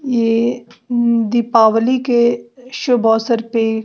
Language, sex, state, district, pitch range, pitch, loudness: Hindi, female, Bihar, West Champaran, 225-245 Hz, 235 Hz, -15 LUFS